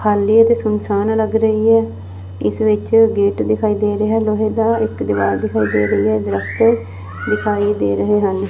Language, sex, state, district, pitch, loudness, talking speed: Punjabi, female, Punjab, Fazilka, 205 Hz, -16 LUFS, 185 wpm